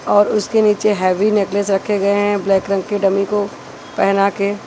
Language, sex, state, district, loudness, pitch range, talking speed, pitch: Hindi, female, Chhattisgarh, Raipur, -16 LUFS, 195-205 Hz, 190 wpm, 200 Hz